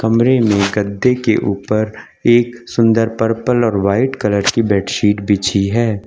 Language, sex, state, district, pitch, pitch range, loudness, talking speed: Hindi, male, Uttar Pradesh, Lucknow, 110 Hz, 100-120 Hz, -15 LUFS, 150 wpm